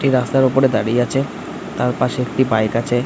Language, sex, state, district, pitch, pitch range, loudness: Bengali, male, West Bengal, Kolkata, 125 Hz, 120-135 Hz, -18 LUFS